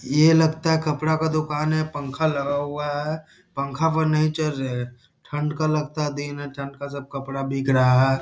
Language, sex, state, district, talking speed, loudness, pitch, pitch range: Hindi, male, Bihar, Muzaffarpur, 205 wpm, -23 LUFS, 145 Hz, 140-155 Hz